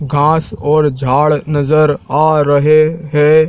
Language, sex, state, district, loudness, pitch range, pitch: Hindi, male, Madhya Pradesh, Dhar, -12 LUFS, 145-155 Hz, 150 Hz